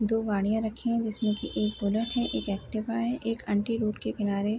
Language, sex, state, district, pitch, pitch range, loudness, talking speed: Hindi, female, Uttar Pradesh, Varanasi, 220 Hz, 210-230 Hz, -29 LUFS, 250 wpm